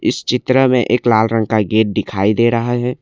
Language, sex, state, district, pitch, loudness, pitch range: Hindi, male, Assam, Kamrup Metropolitan, 115 Hz, -15 LUFS, 110-125 Hz